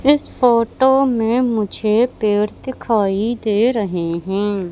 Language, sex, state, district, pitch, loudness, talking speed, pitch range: Hindi, female, Madhya Pradesh, Katni, 225 Hz, -17 LUFS, 115 wpm, 205-245 Hz